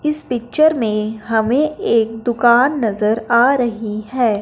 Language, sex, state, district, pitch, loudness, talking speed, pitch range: Hindi, male, Punjab, Fazilka, 235 Hz, -16 LUFS, 135 wpm, 220-255 Hz